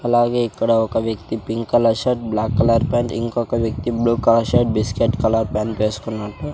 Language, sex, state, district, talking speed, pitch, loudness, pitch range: Telugu, male, Andhra Pradesh, Sri Satya Sai, 185 wpm, 115 Hz, -19 LUFS, 110-120 Hz